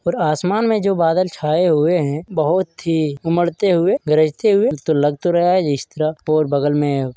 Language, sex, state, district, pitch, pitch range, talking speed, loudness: Hindi, male, Bihar, Vaishali, 160 Hz, 150-180 Hz, 210 wpm, -17 LUFS